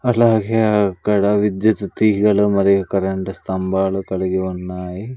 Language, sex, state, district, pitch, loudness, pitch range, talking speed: Telugu, male, Andhra Pradesh, Sri Satya Sai, 100 Hz, -18 LUFS, 95-105 Hz, 105 wpm